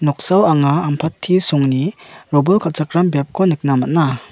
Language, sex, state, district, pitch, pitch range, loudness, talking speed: Garo, male, Meghalaya, West Garo Hills, 155 Hz, 140-175 Hz, -16 LUFS, 125 wpm